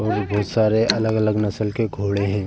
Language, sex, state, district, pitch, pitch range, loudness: Hindi, male, Uttar Pradesh, Jalaun, 105 Hz, 100-110 Hz, -21 LUFS